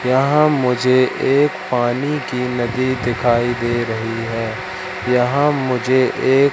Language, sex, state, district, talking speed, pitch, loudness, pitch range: Hindi, male, Madhya Pradesh, Katni, 120 wpm, 125 Hz, -17 LUFS, 120-140 Hz